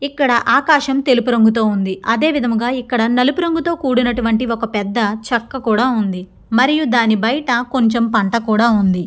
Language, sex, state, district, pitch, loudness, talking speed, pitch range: Telugu, female, Andhra Pradesh, Guntur, 235 Hz, -16 LUFS, 145 wpm, 225-260 Hz